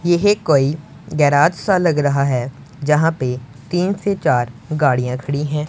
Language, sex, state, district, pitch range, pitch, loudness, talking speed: Hindi, male, Punjab, Pathankot, 135-170 Hz, 150 Hz, -17 LUFS, 160 wpm